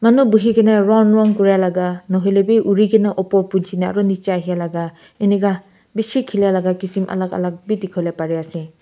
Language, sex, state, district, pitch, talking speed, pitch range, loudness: Nagamese, male, Nagaland, Kohima, 195 Hz, 190 wpm, 180-210 Hz, -17 LUFS